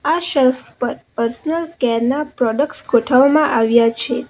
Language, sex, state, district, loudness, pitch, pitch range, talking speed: Gujarati, female, Gujarat, Valsad, -16 LUFS, 255 Hz, 235-300 Hz, 140 wpm